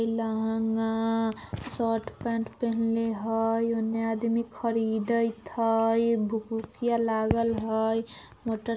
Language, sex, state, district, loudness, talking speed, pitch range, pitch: Bajjika, female, Bihar, Vaishali, -28 LUFS, 95 wpm, 225-230 Hz, 225 Hz